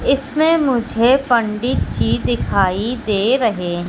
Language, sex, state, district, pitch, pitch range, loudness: Hindi, female, Madhya Pradesh, Katni, 225 Hz, 175-260 Hz, -17 LUFS